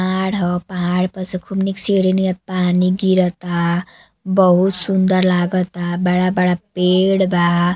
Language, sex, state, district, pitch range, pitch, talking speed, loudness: Bhojpuri, female, Uttar Pradesh, Gorakhpur, 180-190 Hz, 185 Hz, 140 wpm, -17 LUFS